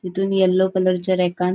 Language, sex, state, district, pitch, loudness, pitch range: Konkani, female, Goa, North and South Goa, 185 Hz, -19 LUFS, 180-190 Hz